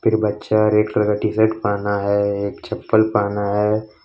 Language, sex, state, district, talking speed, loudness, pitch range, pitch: Hindi, male, Jharkhand, Ranchi, 175 wpm, -19 LUFS, 100-110 Hz, 105 Hz